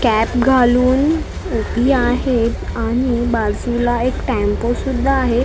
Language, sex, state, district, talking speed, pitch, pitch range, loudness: Marathi, female, Maharashtra, Mumbai Suburban, 120 wpm, 245 Hz, 235-255 Hz, -17 LUFS